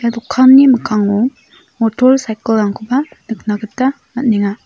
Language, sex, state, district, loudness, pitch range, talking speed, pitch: Garo, female, Meghalaya, South Garo Hills, -13 LUFS, 215-255 Hz, 105 wpm, 230 Hz